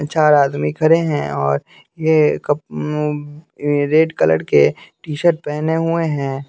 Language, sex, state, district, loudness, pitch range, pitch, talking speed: Hindi, male, Bihar, West Champaran, -17 LUFS, 140-160 Hz, 150 Hz, 130 wpm